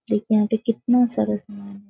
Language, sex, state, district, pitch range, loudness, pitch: Hindi, female, Bihar, Sitamarhi, 200-225 Hz, -21 LUFS, 215 Hz